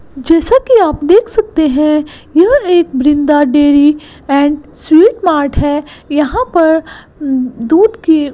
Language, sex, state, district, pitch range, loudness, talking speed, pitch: Hindi, female, Gujarat, Gandhinagar, 290-345 Hz, -11 LUFS, 130 wpm, 300 Hz